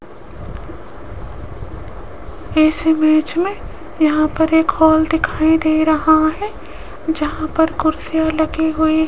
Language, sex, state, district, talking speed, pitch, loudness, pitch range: Hindi, female, Rajasthan, Jaipur, 105 wpm, 315 Hz, -16 LUFS, 315-320 Hz